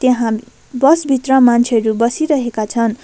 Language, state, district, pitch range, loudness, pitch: Nepali, West Bengal, Darjeeling, 230-265 Hz, -14 LUFS, 240 Hz